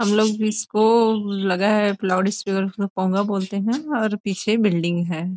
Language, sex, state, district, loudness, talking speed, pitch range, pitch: Hindi, female, Chhattisgarh, Rajnandgaon, -21 LUFS, 155 wpm, 190-215 Hz, 200 Hz